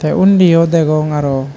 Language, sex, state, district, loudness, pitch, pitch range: Chakma, male, Tripura, Dhalai, -12 LUFS, 155 Hz, 145-170 Hz